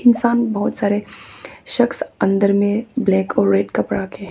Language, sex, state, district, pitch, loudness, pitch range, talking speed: Hindi, female, Arunachal Pradesh, Papum Pare, 205 Hz, -18 LUFS, 200-240 Hz, 155 wpm